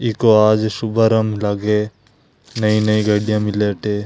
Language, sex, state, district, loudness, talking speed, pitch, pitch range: Marwari, male, Rajasthan, Nagaur, -16 LUFS, 120 wpm, 105 Hz, 105-110 Hz